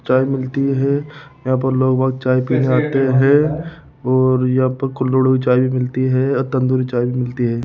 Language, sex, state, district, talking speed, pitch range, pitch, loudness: Hindi, male, Rajasthan, Jaipur, 190 wpm, 130-135 Hz, 130 Hz, -17 LUFS